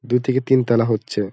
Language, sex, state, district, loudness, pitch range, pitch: Bengali, male, West Bengal, Malda, -19 LUFS, 110-130 Hz, 120 Hz